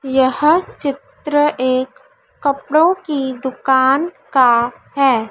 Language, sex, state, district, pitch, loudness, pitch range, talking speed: Hindi, female, Madhya Pradesh, Dhar, 275 Hz, -16 LUFS, 260-310 Hz, 90 wpm